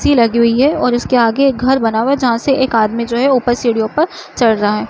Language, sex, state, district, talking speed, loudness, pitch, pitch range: Chhattisgarhi, female, Chhattisgarh, Jashpur, 295 wpm, -14 LUFS, 240 Hz, 230-275 Hz